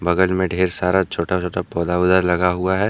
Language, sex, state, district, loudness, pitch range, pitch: Hindi, male, Jharkhand, Deoghar, -19 LUFS, 90-95 Hz, 90 Hz